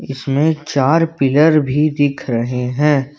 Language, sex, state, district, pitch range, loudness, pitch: Hindi, male, Jharkhand, Ranchi, 135-155 Hz, -15 LUFS, 145 Hz